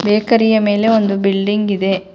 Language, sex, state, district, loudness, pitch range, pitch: Kannada, female, Karnataka, Bangalore, -14 LUFS, 195-220 Hz, 205 Hz